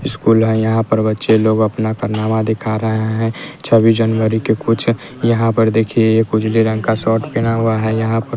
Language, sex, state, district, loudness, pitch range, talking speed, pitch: Hindi, male, Bihar, West Champaran, -15 LUFS, 110-115 Hz, 210 wpm, 110 Hz